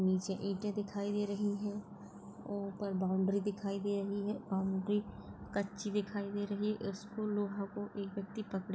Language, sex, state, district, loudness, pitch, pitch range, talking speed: Hindi, female, Rajasthan, Nagaur, -38 LUFS, 200 Hz, 195-205 Hz, 165 wpm